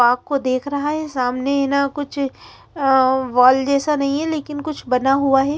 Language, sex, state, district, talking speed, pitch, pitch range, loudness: Hindi, female, Chandigarh, Chandigarh, 195 wpm, 275 Hz, 260-290 Hz, -18 LUFS